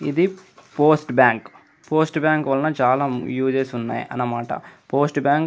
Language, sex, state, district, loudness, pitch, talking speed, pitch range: Telugu, male, Andhra Pradesh, Anantapur, -20 LUFS, 140 Hz, 140 wpm, 130-155 Hz